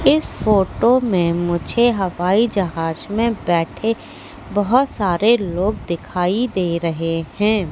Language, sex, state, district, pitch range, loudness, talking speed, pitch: Hindi, female, Madhya Pradesh, Katni, 175-225 Hz, -19 LUFS, 115 wpm, 195 Hz